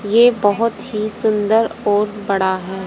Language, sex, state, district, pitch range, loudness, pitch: Hindi, female, Haryana, Jhajjar, 205-225 Hz, -17 LUFS, 215 Hz